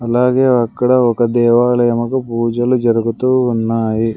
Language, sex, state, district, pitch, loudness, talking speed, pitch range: Telugu, male, Andhra Pradesh, Sri Satya Sai, 120 Hz, -14 LUFS, 100 wpm, 115-125 Hz